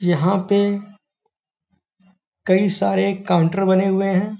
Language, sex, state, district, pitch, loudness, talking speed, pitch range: Hindi, male, Uttar Pradesh, Gorakhpur, 190 Hz, -18 LUFS, 110 wpm, 185-200 Hz